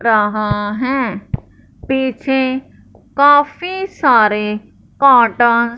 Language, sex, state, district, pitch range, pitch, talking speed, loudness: Hindi, male, Punjab, Fazilka, 215-270 Hz, 250 Hz, 75 wpm, -14 LUFS